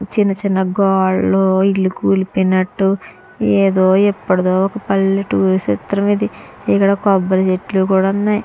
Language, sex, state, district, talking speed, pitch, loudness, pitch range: Telugu, female, Andhra Pradesh, Chittoor, 115 wpm, 195 Hz, -15 LUFS, 190-200 Hz